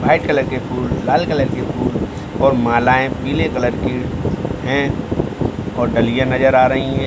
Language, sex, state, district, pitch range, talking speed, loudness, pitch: Hindi, male, Bihar, Samastipur, 120-135 Hz, 170 wpm, -17 LUFS, 130 Hz